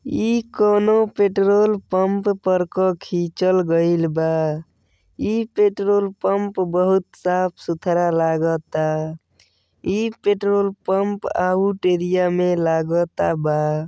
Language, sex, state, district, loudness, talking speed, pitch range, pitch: Bhojpuri, male, Uttar Pradesh, Gorakhpur, -20 LUFS, 105 wpm, 165-200 Hz, 185 Hz